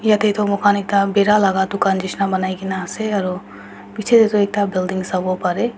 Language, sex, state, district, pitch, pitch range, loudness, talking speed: Nagamese, female, Nagaland, Dimapur, 200 Hz, 190-210 Hz, -18 LUFS, 195 wpm